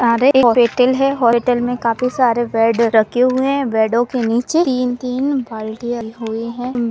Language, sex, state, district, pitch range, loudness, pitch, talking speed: Hindi, female, Rajasthan, Nagaur, 230-255 Hz, -16 LUFS, 240 Hz, 140 wpm